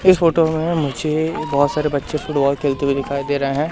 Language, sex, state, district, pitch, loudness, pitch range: Hindi, male, Madhya Pradesh, Katni, 150 Hz, -19 LUFS, 140-160 Hz